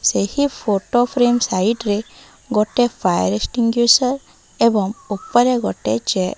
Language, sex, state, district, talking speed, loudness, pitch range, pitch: Odia, female, Odisha, Malkangiri, 105 wpm, -18 LUFS, 205-245 Hz, 235 Hz